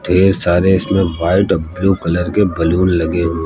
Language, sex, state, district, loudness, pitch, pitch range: Hindi, male, Uttar Pradesh, Lucknow, -14 LUFS, 90 Hz, 85-95 Hz